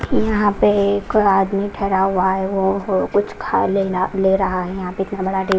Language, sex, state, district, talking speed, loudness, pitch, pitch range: Hindi, female, Punjab, Kapurthala, 170 wpm, -18 LUFS, 195 Hz, 190-200 Hz